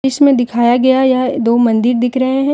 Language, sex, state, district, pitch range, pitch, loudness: Hindi, female, Jharkhand, Deoghar, 240-265 Hz, 255 Hz, -12 LUFS